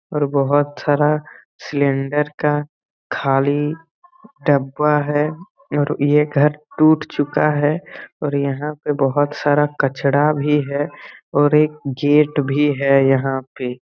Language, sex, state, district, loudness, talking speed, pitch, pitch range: Hindi, male, Jharkhand, Jamtara, -18 LUFS, 120 wpm, 145 Hz, 140-150 Hz